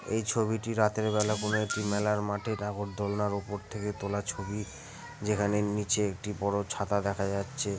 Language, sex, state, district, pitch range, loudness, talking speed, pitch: Bengali, male, West Bengal, Purulia, 100-105 Hz, -31 LUFS, 155 wpm, 105 Hz